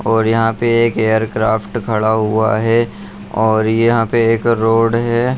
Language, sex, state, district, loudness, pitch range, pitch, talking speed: Hindi, male, Bihar, Saharsa, -15 LUFS, 110-115 Hz, 115 Hz, 165 wpm